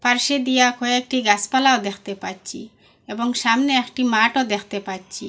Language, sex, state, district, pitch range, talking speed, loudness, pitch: Bengali, female, Assam, Hailakandi, 205-260 Hz, 135 wpm, -19 LUFS, 245 Hz